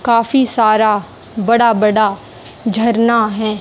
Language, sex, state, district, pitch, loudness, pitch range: Hindi, female, Haryana, Rohtak, 220 Hz, -14 LUFS, 215-235 Hz